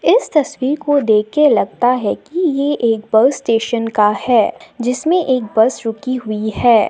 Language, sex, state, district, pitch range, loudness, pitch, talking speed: Hindi, female, Assam, Sonitpur, 220-280 Hz, -15 LUFS, 245 Hz, 175 wpm